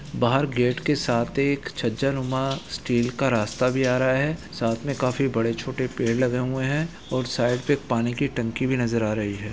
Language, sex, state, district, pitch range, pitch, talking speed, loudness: Hindi, male, Uttar Pradesh, Etah, 120-135 Hz, 130 Hz, 210 wpm, -24 LUFS